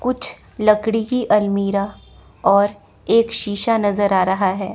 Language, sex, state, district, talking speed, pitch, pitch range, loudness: Hindi, female, Chandigarh, Chandigarh, 140 wpm, 205 Hz, 200-225 Hz, -18 LUFS